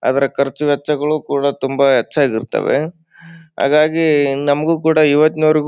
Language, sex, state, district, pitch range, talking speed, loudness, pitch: Kannada, male, Karnataka, Bijapur, 140-155 Hz, 115 wpm, -15 LUFS, 150 Hz